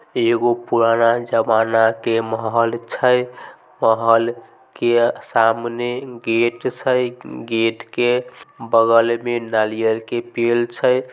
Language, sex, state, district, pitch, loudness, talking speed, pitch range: Maithili, male, Bihar, Samastipur, 115 Hz, -18 LUFS, 100 wpm, 115-120 Hz